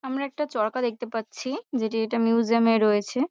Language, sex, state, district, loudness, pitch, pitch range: Bengali, female, West Bengal, North 24 Parganas, -25 LUFS, 230 Hz, 225-265 Hz